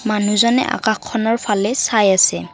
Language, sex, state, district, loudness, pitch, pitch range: Assamese, female, Assam, Kamrup Metropolitan, -16 LUFS, 215 Hz, 205-230 Hz